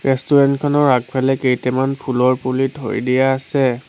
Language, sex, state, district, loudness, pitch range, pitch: Assamese, male, Assam, Sonitpur, -17 LUFS, 130-135 Hz, 130 Hz